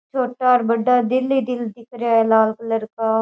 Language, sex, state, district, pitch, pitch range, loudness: Rajasthani, female, Rajasthan, Nagaur, 235 Hz, 225-250 Hz, -19 LUFS